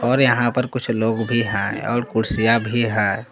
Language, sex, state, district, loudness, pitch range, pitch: Hindi, male, Jharkhand, Palamu, -19 LUFS, 110-120 Hz, 115 Hz